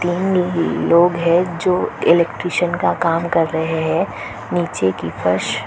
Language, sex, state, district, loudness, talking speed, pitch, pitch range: Hindi, female, Chhattisgarh, Balrampur, -18 LUFS, 135 wpm, 170 Hz, 160-175 Hz